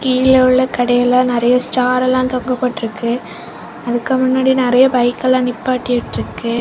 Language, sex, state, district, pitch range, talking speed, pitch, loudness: Tamil, female, Tamil Nadu, Kanyakumari, 245-255 Hz, 110 wpm, 250 Hz, -15 LUFS